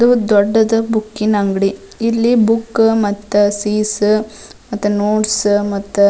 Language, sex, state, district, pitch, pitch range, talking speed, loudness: Kannada, female, Karnataka, Dharwad, 210 Hz, 205-225 Hz, 110 wpm, -15 LUFS